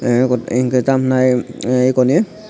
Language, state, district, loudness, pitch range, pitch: Kokborok, Tripura, Dhalai, -15 LUFS, 125-130 Hz, 125 Hz